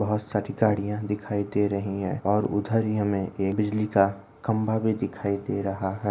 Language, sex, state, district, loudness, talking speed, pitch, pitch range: Hindi, male, Maharashtra, Dhule, -26 LUFS, 195 wpm, 105 Hz, 100-105 Hz